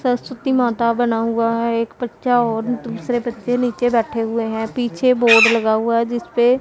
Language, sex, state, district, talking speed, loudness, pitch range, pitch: Hindi, female, Punjab, Pathankot, 180 wpm, -18 LUFS, 230-245 Hz, 235 Hz